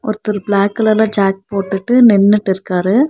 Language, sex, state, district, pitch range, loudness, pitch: Tamil, female, Tamil Nadu, Nilgiris, 195-220 Hz, -13 LUFS, 205 Hz